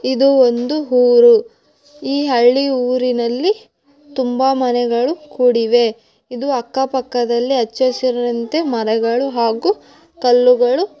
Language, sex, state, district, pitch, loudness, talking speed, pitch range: Kannada, female, Karnataka, Bellary, 255 Hz, -15 LUFS, 95 wpm, 240-280 Hz